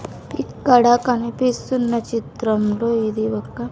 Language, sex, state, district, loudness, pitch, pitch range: Telugu, female, Andhra Pradesh, Sri Satya Sai, -19 LUFS, 230 Hz, 215-245 Hz